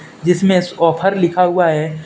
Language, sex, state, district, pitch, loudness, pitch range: Hindi, male, Jharkhand, Deoghar, 175 Hz, -15 LUFS, 160-180 Hz